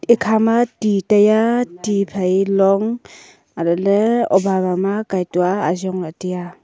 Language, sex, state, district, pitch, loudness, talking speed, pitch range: Wancho, female, Arunachal Pradesh, Longding, 195 Hz, -17 LUFS, 145 wpm, 185-220 Hz